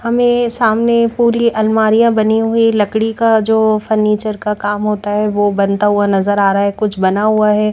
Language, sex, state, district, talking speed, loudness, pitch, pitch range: Hindi, female, Bihar, Katihar, 195 wpm, -13 LUFS, 215 Hz, 205-225 Hz